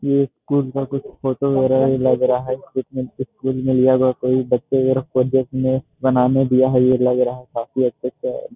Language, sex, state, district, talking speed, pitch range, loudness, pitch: Hindi, male, Bihar, Jamui, 190 wpm, 125-135 Hz, -19 LUFS, 130 Hz